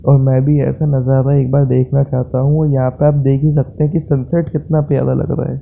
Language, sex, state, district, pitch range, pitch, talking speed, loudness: Hindi, male, Bihar, Saran, 130-150 Hz, 140 Hz, 265 wpm, -14 LUFS